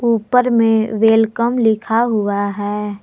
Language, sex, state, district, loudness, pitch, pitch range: Hindi, female, Jharkhand, Palamu, -16 LUFS, 225 Hz, 210-230 Hz